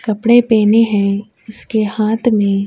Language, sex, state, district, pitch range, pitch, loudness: Urdu, female, Uttar Pradesh, Budaun, 205-225 Hz, 215 Hz, -14 LUFS